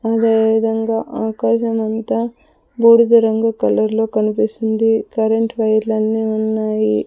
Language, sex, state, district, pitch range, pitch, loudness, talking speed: Telugu, female, Andhra Pradesh, Sri Satya Sai, 220-225 Hz, 225 Hz, -16 LUFS, 100 wpm